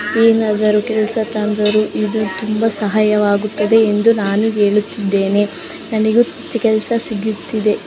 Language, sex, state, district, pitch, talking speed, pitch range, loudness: Kannada, female, Karnataka, Dharwad, 215 Hz, 100 wpm, 210-220 Hz, -16 LUFS